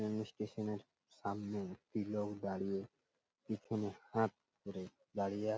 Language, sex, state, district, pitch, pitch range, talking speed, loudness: Bengali, male, West Bengal, Purulia, 105 Hz, 100-110 Hz, 140 wpm, -42 LUFS